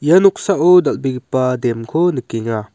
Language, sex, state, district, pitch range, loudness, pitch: Garo, male, Meghalaya, West Garo Hills, 115-170 Hz, -15 LUFS, 130 Hz